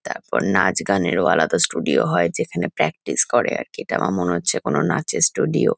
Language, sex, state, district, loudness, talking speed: Bengali, female, West Bengal, Kolkata, -20 LUFS, 185 wpm